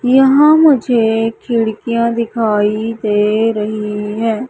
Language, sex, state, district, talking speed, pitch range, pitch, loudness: Hindi, female, Madhya Pradesh, Umaria, 95 wpm, 215-235 Hz, 225 Hz, -14 LUFS